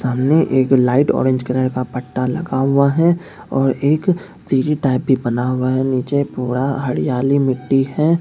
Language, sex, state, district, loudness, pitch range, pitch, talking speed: Hindi, male, Bihar, Katihar, -17 LUFS, 130-140 Hz, 130 Hz, 170 wpm